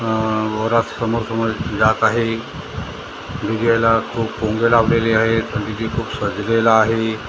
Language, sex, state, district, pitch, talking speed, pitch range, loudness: Marathi, male, Maharashtra, Gondia, 115 Hz, 130 wpm, 110-115 Hz, -18 LUFS